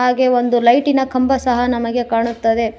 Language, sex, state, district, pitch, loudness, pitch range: Kannada, female, Karnataka, Koppal, 245 Hz, -16 LUFS, 235-255 Hz